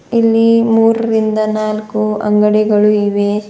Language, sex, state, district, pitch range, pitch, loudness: Kannada, female, Karnataka, Bidar, 210-225 Hz, 215 Hz, -13 LUFS